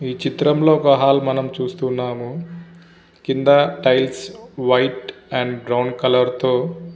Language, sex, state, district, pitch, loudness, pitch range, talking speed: Telugu, male, Andhra Pradesh, Visakhapatnam, 135 Hz, -18 LUFS, 125-155 Hz, 110 wpm